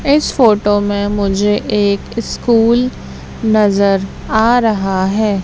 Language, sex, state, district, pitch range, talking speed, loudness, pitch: Hindi, female, Madhya Pradesh, Katni, 200-230 Hz, 110 wpm, -14 LUFS, 210 Hz